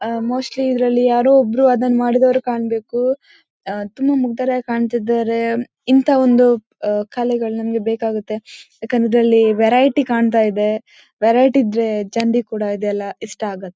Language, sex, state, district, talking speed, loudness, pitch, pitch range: Kannada, female, Karnataka, Dakshina Kannada, 125 wpm, -17 LUFS, 235 Hz, 225-255 Hz